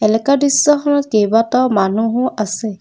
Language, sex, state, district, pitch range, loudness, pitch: Assamese, female, Assam, Kamrup Metropolitan, 215-280 Hz, -14 LUFS, 230 Hz